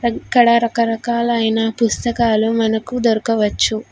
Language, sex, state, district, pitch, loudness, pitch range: Telugu, female, Telangana, Hyderabad, 230 Hz, -16 LUFS, 225-235 Hz